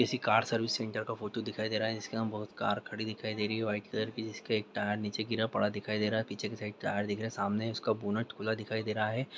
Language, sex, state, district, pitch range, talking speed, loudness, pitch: Hindi, male, Bihar, Lakhisarai, 105-110 Hz, 300 wpm, -34 LUFS, 110 Hz